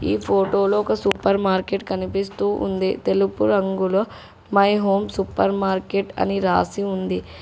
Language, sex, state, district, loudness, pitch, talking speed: Telugu, female, Telangana, Hyderabad, -21 LUFS, 190 Hz, 130 wpm